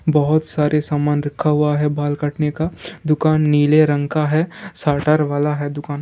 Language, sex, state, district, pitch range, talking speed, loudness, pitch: Hindi, male, Bihar, Jamui, 145-155 Hz, 180 wpm, -18 LUFS, 150 Hz